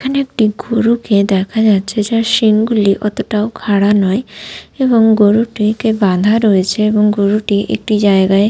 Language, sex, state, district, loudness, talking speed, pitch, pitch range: Bengali, female, West Bengal, Malda, -13 LUFS, 140 wpm, 210 Hz, 200-225 Hz